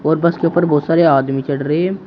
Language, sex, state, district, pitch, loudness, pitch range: Hindi, male, Uttar Pradesh, Shamli, 165 Hz, -15 LUFS, 140-170 Hz